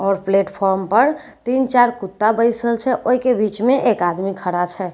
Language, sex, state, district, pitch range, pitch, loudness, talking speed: Maithili, female, Bihar, Katihar, 195-245 Hz, 215 Hz, -18 LUFS, 195 wpm